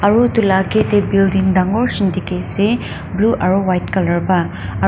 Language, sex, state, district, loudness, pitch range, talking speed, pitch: Nagamese, female, Nagaland, Dimapur, -16 LUFS, 185-205 Hz, 185 wpm, 190 Hz